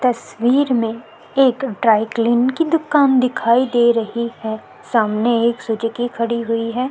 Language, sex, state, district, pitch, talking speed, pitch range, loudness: Hindi, female, Chhattisgarh, Korba, 235 Hz, 140 wpm, 230-255 Hz, -17 LUFS